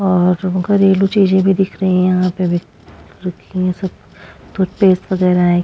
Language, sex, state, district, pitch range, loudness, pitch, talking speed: Hindi, female, Bihar, Vaishali, 180-195 Hz, -15 LUFS, 185 Hz, 170 wpm